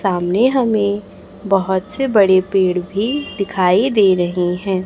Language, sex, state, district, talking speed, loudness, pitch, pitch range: Hindi, female, Chhattisgarh, Raipur, 135 wpm, -16 LUFS, 195 Hz, 185-210 Hz